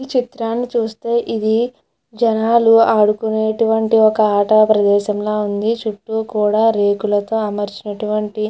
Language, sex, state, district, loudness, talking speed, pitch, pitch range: Telugu, female, Andhra Pradesh, Chittoor, -16 LUFS, 105 wpm, 220 Hz, 210-225 Hz